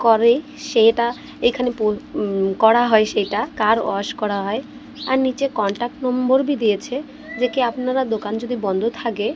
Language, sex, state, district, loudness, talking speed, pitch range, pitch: Bengali, female, Odisha, Malkangiri, -20 LUFS, 155 wpm, 215-265 Hz, 235 Hz